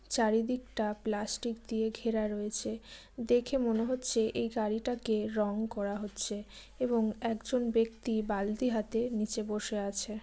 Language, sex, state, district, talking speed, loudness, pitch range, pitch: Bengali, female, West Bengal, Jalpaiguri, 125 wpm, -33 LUFS, 210-235 Hz, 220 Hz